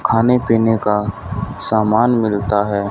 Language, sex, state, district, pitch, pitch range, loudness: Hindi, male, Haryana, Rohtak, 105 Hz, 100-115 Hz, -16 LUFS